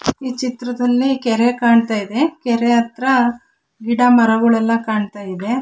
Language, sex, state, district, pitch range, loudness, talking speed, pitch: Kannada, female, Karnataka, Shimoga, 230-250 Hz, -16 LUFS, 105 wpm, 235 Hz